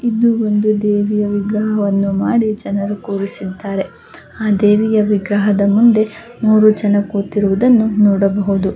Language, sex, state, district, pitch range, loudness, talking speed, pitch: Kannada, female, Karnataka, Dakshina Kannada, 200-215 Hz, -15 LUFS, 105 wpm, 210 Hz